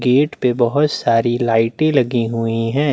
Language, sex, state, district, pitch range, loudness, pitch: Hindi, male, Chhattisgarh, Bastar, 115-140 Hz, -17 LUFS, 120 Hz